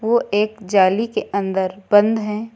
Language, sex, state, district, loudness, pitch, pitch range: Hindi, female, Uttar Pradesh, Lucknow, -18 LUFS, 205 Hz, 195-220 Hz